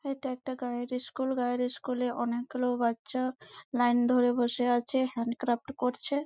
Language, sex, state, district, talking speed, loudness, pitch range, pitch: Bengali, female, West Bengal, Malda, 155 wpm, -30 LUFS, 240-260 Hz, 250 Hz